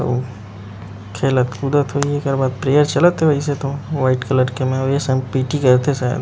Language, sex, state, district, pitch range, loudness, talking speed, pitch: Chhattisgarhi, male, Chhattisgarh, Rajnandgaon, 125-140 Hz, -18 LUFS, 205 wpm, 130 Hz